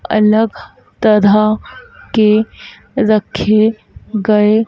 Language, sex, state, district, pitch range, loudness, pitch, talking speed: Hindi, female, Madhya Pradesh, Dhar, 210-220 Hz, -13 LUFS, 215 Hz, 65 wpm